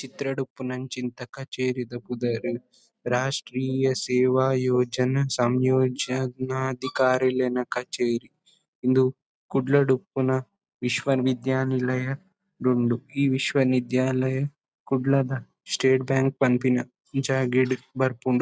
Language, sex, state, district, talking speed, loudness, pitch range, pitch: Tulu, male, Karnataka, Dakshina Kannada, 85 wpm, -25 LUFS, 125-135 Hz, 130 Hz